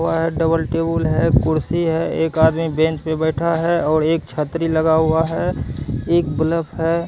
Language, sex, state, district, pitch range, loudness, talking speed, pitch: Hindi, male, Bihar, Katihar, 160-165 Hz, -18 LUFS, 180 wpm, 160 Hz